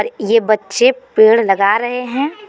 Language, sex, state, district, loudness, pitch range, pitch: Hindi, female, Jharkhand, Deoghar, -14 LUFS, 215-285 Hz, 230 Hz